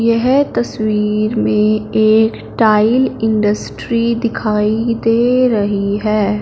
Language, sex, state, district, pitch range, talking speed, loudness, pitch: Hindi, female, Punjab, Fazilka, 210-230 Hz, 95 wpm, -14 LUFS, 220 Hz